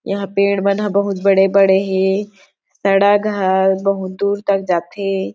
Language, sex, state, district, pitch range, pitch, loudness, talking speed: Chhattisgarhi, female, Chhattisgarh, Sarguja, 190-200 Hz, 195 Hz, -16 LUFS, 145 wpm